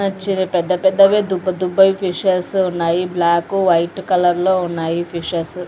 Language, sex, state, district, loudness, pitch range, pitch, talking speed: Telugu, female, Andhra Pradesh, Anantapur, -17 LUFS, 175-190 Hz, 185 Hz, 115 wpm